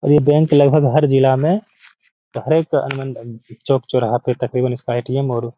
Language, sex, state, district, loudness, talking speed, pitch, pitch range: Hindi, male, Bihar, Gaya, -16 LUFS, 160 wpm, 135 Hz, 125-145 Hz